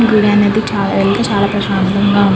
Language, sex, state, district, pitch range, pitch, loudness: Telugu, female, Andhra Pradesh, Krishna, 200-210 Hz, 200 Hz, -13 LUFS